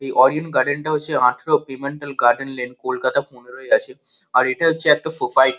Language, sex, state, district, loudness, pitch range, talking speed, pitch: Bengali, male, West Bengal, Kolkata, -18 LUFS, 130-150 Hz, 195 wpm, 140 Hz